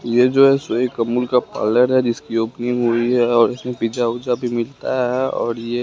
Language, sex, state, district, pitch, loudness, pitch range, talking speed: Hindi, male, Bihar, West Champaran, 120 Hz, -18 LUFS, 115-125 Hz, 215 wpm